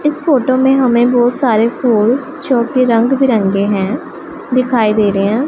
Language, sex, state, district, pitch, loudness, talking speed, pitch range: Hindi, female, Punjab, Pathankot, 245 Hz, -13 LUFS, 175 wpm, 220-265 Hz